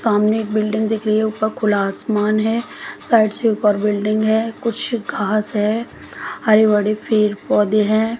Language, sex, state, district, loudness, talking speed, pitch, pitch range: Hindi, female, Haryana, Jhajjar, -18 LUFS, 175 wpm, 215 Hz, 210-220 Hz